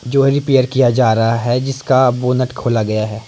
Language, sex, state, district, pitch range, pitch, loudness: Hindi, male, Himachal Pradesh, Shimla, 115-135 Hz, 125 Hz, -15 LUFS